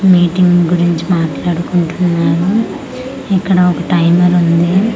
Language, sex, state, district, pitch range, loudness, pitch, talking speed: Telugu, female, Andhra Pradesh, Manyam, 170-185 Hz, -12 LUFS, 175 Hz, 85 wpm